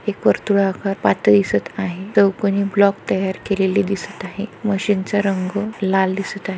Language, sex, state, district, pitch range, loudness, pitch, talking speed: Marathi, female, Maharashtra, Pune, 190-200 Hz, -19 LUFS, 195 Hz, 165 wpm